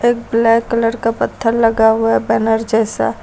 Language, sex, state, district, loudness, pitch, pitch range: Hindi, female, Uttar Pradesh, Lucknow, -15 LUFS, 230 Hz, 225-230 Hz